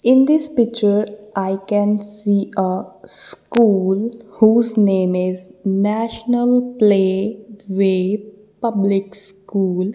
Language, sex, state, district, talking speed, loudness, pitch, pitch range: English, female, Punjab, Kapurthala, 95 wpm, -18 LUFS, 205 Hz, 195-225 Hz